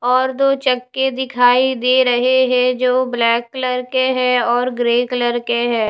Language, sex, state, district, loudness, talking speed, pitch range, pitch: Hindi, female, Punjab, Fazilka, -16 LUFS, 170 wpm, 245-260 Hz, 250 Hz